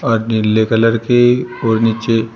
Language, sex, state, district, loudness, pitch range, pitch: Hindi, male, Uttar Pradesh, Shamli, -14 LUFS, 110-120 Hz, 115 Hz